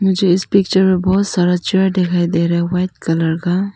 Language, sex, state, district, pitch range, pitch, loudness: Hindi, female, Arunachal Pradesh, Papum Pare, 175-190 Hz, 180 Hz, -15 LUFS